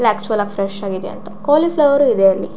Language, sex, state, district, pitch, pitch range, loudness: Kannada, female, Karnataka, Shimoga, 215 Hz, 195-280 Hz, -16 LUFS